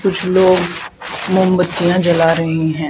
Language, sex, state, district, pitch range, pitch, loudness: Hindi, female, Haryana, Charkhi Dadri, 165-185 Hz, 180 Hz, -14 LUFS